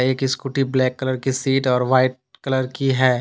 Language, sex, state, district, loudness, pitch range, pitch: Hindi, male, Jharkhand, Deoghar, -20 LUFS, 130-135 Hz, 130 Hz